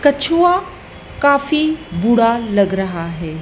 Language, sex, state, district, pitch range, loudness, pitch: Hindi, female, Madhya Pradesh, Dhar, 190-310 Hz, -16 LUFS, 235 Hz